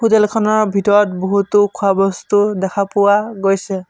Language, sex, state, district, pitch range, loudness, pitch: Assamese, male, Assam, Sonitpur, 195-210 Hz, -15 LUFS, 200 Hz